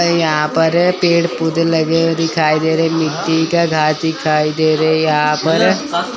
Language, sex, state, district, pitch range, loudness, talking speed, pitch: Hindi, male, Chandigarh, Chandigarh, 155-165 Hz, -14 LUFS, 195 wpm, 160 Hz